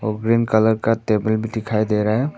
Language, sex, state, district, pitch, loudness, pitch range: Hindi, male, Arunachal Pradesh, Papum Pare, 110 Hz, -19 LUFS, 110-115 Hz